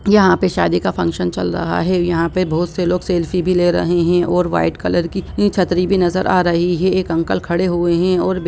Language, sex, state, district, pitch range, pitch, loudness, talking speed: Hindi, female, Bihar, Lakhisarai, 170-185 Hz, 175 Hz, -16 LUFS, 255 wpm